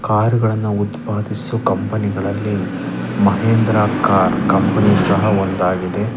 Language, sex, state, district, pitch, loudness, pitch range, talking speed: Kannada, male, Karnataka, Chamarajanagar, 105 Hz, -17 LUFS, 95-110 Hz, 90 wpm